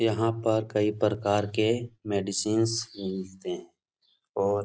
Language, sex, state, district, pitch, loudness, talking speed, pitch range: Hindi, male, Bihar, Supaul, 105 Hz, -28 LUFS, 130 wpm, 100-115 Hz